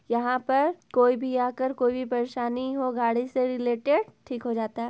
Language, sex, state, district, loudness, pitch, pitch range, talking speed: Hindi, female, Bihar, Gopalganj, -26 LUFS, 250 Hz, 240-260 Hz, 210 wpm